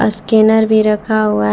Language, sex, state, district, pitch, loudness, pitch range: Hindi, female, Jharkhand, Palamu, 215 Hz, -12 LUFS, 210-220 Hz